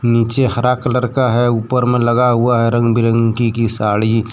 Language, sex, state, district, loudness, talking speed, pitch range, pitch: Hindi, male, Jharkhand, Deoghar, -14 LUFS, 195 wpm, 115-125 Hz, 120 Hz